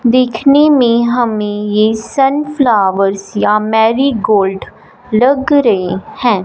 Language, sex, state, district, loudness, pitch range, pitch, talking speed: Hindi, female, Punjab, Fazilka, -12 LUFS, 210-260 Hz, 225 Hz, 95 wpm